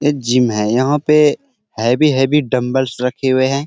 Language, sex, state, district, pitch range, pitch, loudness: Hindi, male, Bihar, Bhagalpur, 125-150 Hz, 130 Hz, -15 LUFS